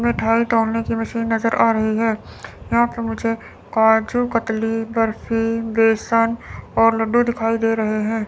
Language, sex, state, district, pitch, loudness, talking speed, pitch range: Hindi, female, Chandigarh, Chandigarh, 225 Hz, -19 LUFS, 150 wpm, 225-230 Hz